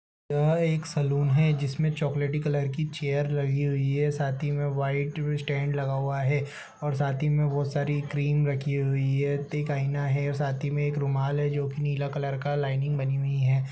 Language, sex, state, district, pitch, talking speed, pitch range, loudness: Hindi, male, Uttar Pradesh, Budaun, 145 Hz, 215 wpm, 140-145 Hz, -27 LUFS